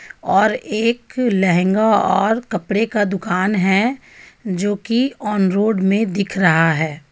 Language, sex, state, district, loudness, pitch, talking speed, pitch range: Hindi, female, Jharkhand, Ranchi, -17 LUFS, 205 Hz, 135 wpm, 190-220 Hz